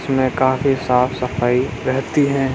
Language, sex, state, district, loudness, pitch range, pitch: Hindi, male, Uttar Pradesh, Muzaffarnagar, -18 LUFS, 125-135 Hz, 130 Hz